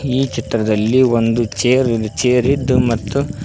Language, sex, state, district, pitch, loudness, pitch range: Kannada, male, Karnataka, Koppal, 125 Hz, -16 LUFS, 115-130 Hz